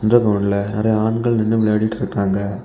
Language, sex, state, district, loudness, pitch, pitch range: Tamil, male, Tamil Nadu, Kanyakumari, -18 LUFS, 110 Hz, 100-110 Hz